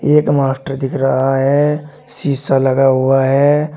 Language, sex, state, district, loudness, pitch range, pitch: Hindi, male, Uttar Pradesh, Shamli, -14 LUFS, 135-150 Hz, 135 Hz